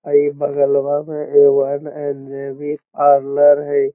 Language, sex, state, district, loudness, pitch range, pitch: Magahi, male, Bihar, Lakhisarai, -16 LUFS, 140-145 Hz, 145 Hz